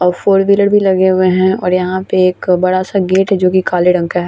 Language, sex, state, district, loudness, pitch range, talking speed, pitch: Hindi, female, Bihar, Vaishali, -12 LUFS, 180-190 Hz, 265 wpm, 185 Hz